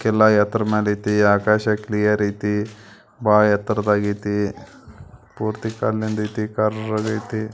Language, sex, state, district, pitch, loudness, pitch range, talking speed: Kannada, male, Karnataka, Belgaum, 105 Hz, -20 LUFS, 105-110 Hz, 120 wpm